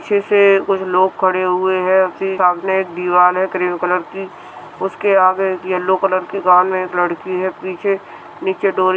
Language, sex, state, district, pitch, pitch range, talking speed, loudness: Hindi, male, Rajasthan, Churu, 185 Hz, 180-190 Hz, 195 wpm, -16 LUFS